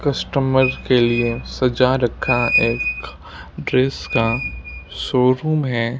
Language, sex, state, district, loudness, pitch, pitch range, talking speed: Hindi, male, Punjab, Kapurthala, -18 LUFS, 125 Hz, 115-130 Hz, 100 wpm